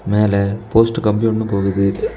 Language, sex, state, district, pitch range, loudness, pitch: Tamil, male, Tamil Nadu, Kanyakumari, 100-115 Hz, -17 LUFS, 105 Hz